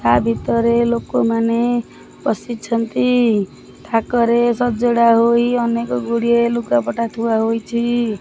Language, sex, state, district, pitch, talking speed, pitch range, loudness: Odia, male, Odisha, Khordha, 235 Hz, 90 wpm, 220-235 Hz, -17 LUFS